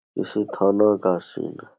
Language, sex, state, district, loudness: Hindi, male, Bihar, Saharsa, -22 LUFS